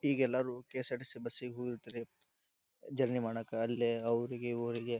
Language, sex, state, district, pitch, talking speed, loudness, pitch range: Kannada, male, Karnataka, Dharwad, 120 Hz, 145 wpm, -37 LUFS, 115-125 Hz